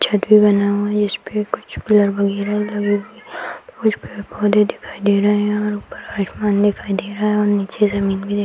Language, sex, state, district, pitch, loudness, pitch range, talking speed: Hindi, female, Bihar, Bhagalpur, 205 Hz, -18 LUFS, 200-210 Hz, 235 wpm